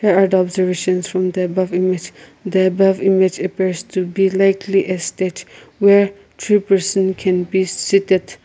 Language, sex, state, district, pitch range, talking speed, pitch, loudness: English, female, Nagaland, Kohima, 185-195 Hz, 165 wpm, 190 Hz, -17 LUFS